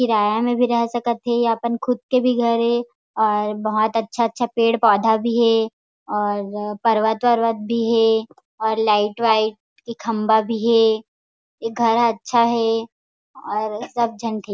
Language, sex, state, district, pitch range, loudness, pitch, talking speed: Chhattisgarhi, female, Chhattisgarh, Raigarh, 220-235 Hz, -19 LUFS, 225 Hz, 155 wpm